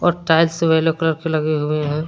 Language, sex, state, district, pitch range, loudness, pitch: Hindi, male, Jharkhand, Deoghar, 155-165 Hz, -18 LUFS, 160 Hz